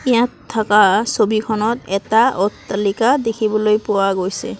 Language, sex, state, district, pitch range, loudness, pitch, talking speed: Assamese, female, Assam, Kamrup Metropolitan, 200-225 Hz, -17 LUFS, 215 Hz, 105 wpm